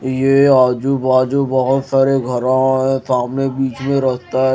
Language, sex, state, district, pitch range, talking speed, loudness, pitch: Hindi, male, Odisha, Malkangiri, 130-135 Hz, 160 wpm, -15 LUFS, 130 Hz